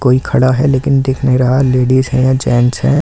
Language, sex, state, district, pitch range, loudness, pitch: Hindi, male, Delhi, New Delhi, 130-135 Hz, -12 LUFS, 130 Hz